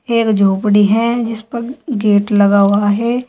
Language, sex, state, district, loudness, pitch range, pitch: Hindi, female, Uttar Pradesh, Saharanpur, -14 LUFS, 205-235 Hz, 220 Hz